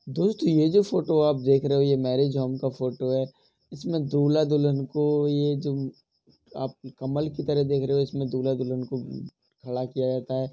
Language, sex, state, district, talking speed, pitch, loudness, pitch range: Hindi, male, Uttar Pradesh, Jalaun, 200 wpm, 135 Hz, -25 LUFS, 130-145 Hz